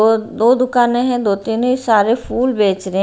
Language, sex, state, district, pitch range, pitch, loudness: Hindi, female, Bihar, Patna, 210-245 Hz, 230 Hz, -15 LUFS